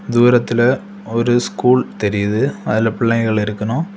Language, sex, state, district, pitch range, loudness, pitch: Tamil, male, Tamil Nadu, Kanyakumari, 105-120 Hz, -16 LUFS, 115 Hz